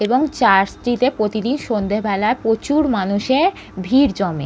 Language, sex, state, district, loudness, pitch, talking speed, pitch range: Bengali, female, West Bengal, North 24 Parganas, -17 LUFS, 225 Hz, 135 wpm, 200-260 Hz